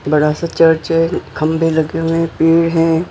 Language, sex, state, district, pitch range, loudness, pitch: Hindi, male, Maharashtra, Mumbai Suburban, 160-165 Hz, -14 LUFS, 165 Hz